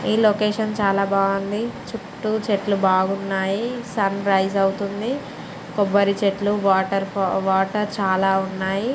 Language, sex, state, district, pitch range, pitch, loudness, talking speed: Telugu, female, Andhra Pradesh, Srikakulam, 195-210 Hz, 200 Hz, -21 LUFS, 115 wpm